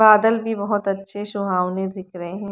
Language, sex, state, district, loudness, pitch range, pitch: Hindi, female, Haryana, Rohtak, -22 LUFS, 190-210 Hz, 200 Hz